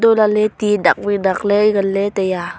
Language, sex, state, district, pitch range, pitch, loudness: Wancho, female, Arunachal Pradesh, Longding, 195-210 Hz, 205 Hz, -16 LUFS